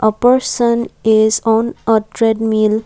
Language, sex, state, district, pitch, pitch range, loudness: English, female, Assam, Kamrup Metropolitan, 225 Hz, 215-235 Hz, -14 LUFS